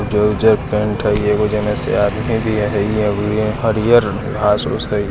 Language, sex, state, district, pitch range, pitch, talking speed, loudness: Hindi, male, Bihar, East Champaran, 105-110 Hz, 105 Hz, 175 wpm, -16 LUFS